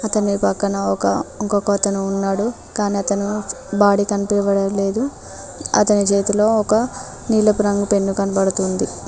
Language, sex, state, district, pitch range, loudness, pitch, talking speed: Telugu, female, Telangana, Mahabubabad, 195-210 Hz, -18 LUFS, 200 Hz, 110 wpm